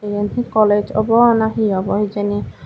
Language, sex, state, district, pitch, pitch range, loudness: Chakma, female, Tripura, Dhalai, 210 Hz, 205-220 Hz, -16 LUFS